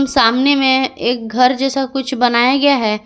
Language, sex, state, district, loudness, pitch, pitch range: Hindi, female, Jharkhand, Garhwa, -14 LUFS, 260 Hz, 240-270 Hz